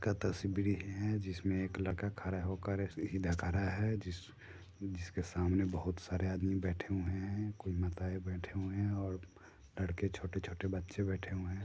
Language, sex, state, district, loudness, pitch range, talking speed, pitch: Hindi, male, Bihar, Sitamarhi, -39 LUFS, 90-100 Hz, 150 wpm, 95 Hz